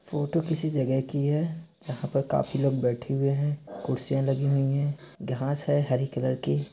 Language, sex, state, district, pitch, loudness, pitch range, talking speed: Hindi, male, Bihar, East Champaran, 140 Hz, -28 LUFS, 130-150 Hz, 185 wpm